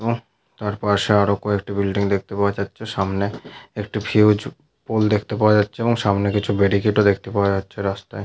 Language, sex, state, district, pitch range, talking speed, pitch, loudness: Bengali, male, West Bengal, Malda, 100-105 Hz, 175 wpm, 100 Hz, -20 LUFS